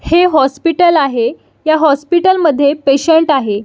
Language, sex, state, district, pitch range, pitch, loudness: Marathi, female, Maharashtra, Solapur, 275-335 Hz, 310 Hz, -12 LUFS